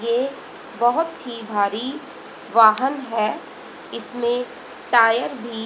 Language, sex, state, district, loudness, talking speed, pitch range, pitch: Hindi, female, Haryana, Jhajjar, -21 LUFS, 95 wpm, 225-260 Hz, 240 Hz